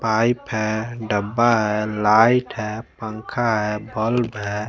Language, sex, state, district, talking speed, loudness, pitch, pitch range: Hindi, male, Chandigarh, Chandigarh, 130 wpm, -21 LUFS, 110 Hz, 105-115 Hz